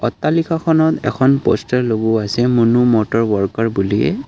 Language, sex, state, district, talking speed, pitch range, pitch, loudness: Assamese, male, Assam, Kamrup Metropolitan, 125 wpm, 110-140 Hz, 115 Hz, -16 LUFS